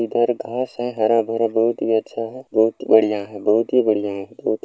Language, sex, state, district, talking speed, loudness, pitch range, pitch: Maithili, male, Bihar, Supaul, 230 wpm, -20 LUFS, 110-120 Hz, 115 Hz